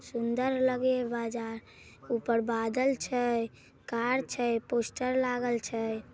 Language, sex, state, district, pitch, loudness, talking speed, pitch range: Maithili, female, Bihar, Samastipur, 235 Hz, -31 LUFS, 115 wpm, 230-255 Hz